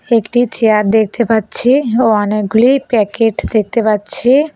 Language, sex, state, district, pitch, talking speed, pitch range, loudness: Bengali, female, West Bengal, Cooch Behar, 225 Hz, 120 wpm, 215-245 Hz, -13 LUFS